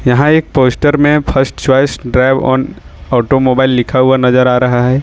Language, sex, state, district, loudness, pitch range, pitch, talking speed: Hindi, male, Jharkhand, Ranchi, -11 LUFS, 125-135 Hz, 130 Hz, 165 wpm